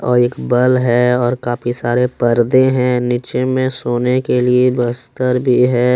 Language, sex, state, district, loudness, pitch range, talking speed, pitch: Hindi, male, Jharkhand, Deoghar, -15 LUFS, 120-125 Hz, 170 wpm, 125 Hz